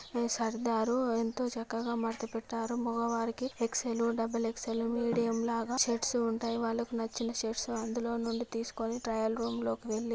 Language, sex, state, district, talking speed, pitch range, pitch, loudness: Telugu, female, Andhra Pradesh, Guntur, 130 wpm, 225-235 Hz, 230 Hz, -33 LUFS